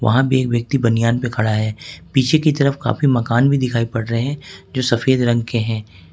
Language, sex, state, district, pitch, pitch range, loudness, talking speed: Hindi, male, Jharkhand, Ranchi, 120 Hz, 115-135 Hz, -18 LUFS, 225 wpm